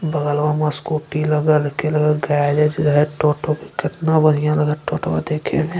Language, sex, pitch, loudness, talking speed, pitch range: Angika, male, 150 Hz, -18 LUFS, 185 wpm, 150-155 Hz